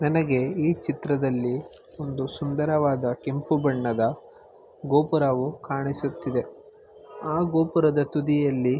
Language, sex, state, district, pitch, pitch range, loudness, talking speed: Kannada, male, Karnataka, Mysore, 145 Hz, 135-155 Hz, -25 LUFS, 80 wpm